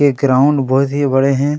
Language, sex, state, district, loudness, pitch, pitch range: Hindi, male, Chhattisgarh, Kabirdham, -14 LUFS, 140 Hz, 135-145 Hz